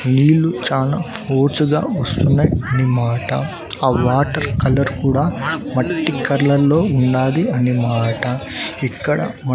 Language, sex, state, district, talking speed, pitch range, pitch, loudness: Telugu, male, Andhra Pradesh, Annamaya, 120 wpm, 125-145 Hz, 135 Hz, -17 LUFS